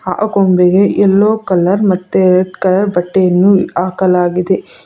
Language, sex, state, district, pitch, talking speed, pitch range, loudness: Kannada, female, Karnataka, Bangalore, 185 Hz, 110 wpm, 180-195 Hz, -12 LUFS